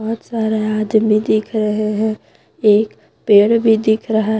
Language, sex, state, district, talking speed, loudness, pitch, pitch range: Hindi, female, Jharkhand, Deoghar, 150 wpm, -16 LUFS, 220 Hz, 215-220 Hz